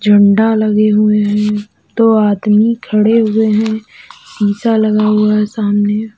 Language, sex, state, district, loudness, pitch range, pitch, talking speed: Hindi, female, Uttar Pradesh, Lalitpur, -12 LUFS, 210-220 Hz, 215 Hz, 135 wpm